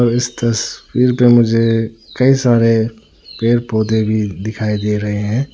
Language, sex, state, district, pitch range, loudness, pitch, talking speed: Hindi, male, Arunachal Pradesh, Lower Dibang Valley, 110-120 Hz, -15 LUFS, 115 Hz, 140 wpm